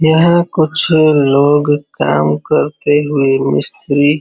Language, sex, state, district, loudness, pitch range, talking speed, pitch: Hindi, male, Uttar Pradesh, Varanasi, -12 LUFS, 140-155 Hz, 115 wpm, 145 Hz